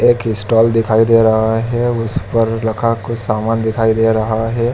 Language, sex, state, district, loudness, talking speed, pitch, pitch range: Hindi, male, Chhattisgarh, Bilaspur, -15 LUFS, 190 wpm, 115 Hz, 110-115 Hz